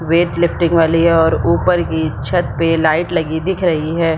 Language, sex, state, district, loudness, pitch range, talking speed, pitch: Hindi, female, Jharkhand, Sahebganj, -15 LUFS, 160-170 Hz, 200 wpm, 165 Hz